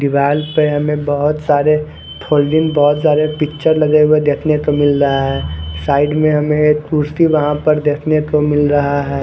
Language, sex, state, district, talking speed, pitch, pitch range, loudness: Hindi, male, Haryana, Charkhi Dadri, 180 wpm, 150 Hz, 145-150 Hz, -14 LUFS